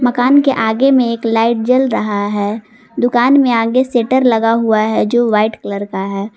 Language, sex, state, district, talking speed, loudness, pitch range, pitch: Hindi, female, Jharkhand, Garhwa, 195 wpm, -13 LUFS, 215-250 Hz, 230 Hz